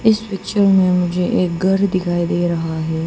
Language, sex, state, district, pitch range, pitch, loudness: Hindi, female, Arunachal Pradesh, Papum Pare, 175-195 Hz, 180 Hz, -17 LUFS